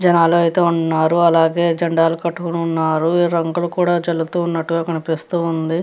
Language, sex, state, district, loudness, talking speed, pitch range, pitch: Telugu, female, Andhra Pradesh, Chittoor, -17 LUFS, 135 wpm, 165-170 Hz, 170 Hz